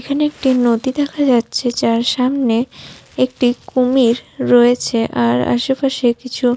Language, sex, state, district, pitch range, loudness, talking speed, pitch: Bengali, female, West Bengal, Jhargram, 235-265 Hz, -16 LUFS, 135 wpm, 245 Hz